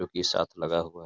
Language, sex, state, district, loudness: Hindi, male, Uttar Pradesh, Etah, -28 LUFS